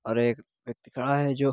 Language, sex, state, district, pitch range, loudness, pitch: Hindi, male, Uttar Pradesh, Muzaffarnagar, 120-140 Hz, -27 LUFS, 125 Hz